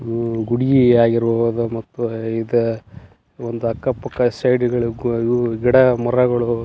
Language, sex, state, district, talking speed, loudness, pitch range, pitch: Kannada, male, Karnataka, Belgaum, 115 wpm, -18 LUFS, 115-120 Hz, 120 Hz